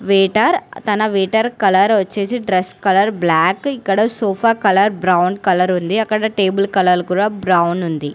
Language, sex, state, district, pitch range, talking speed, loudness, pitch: Telugu, female, Telangana, Hyderabad, 185-215 Hz, 145 wpm, -15 LUFS, 195 Hz